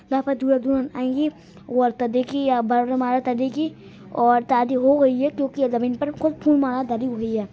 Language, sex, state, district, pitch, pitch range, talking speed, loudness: Hindi, male, Bihar, East Champaran, 255 Hz, 245-275 Hz, 150 wpm, -21 LUFS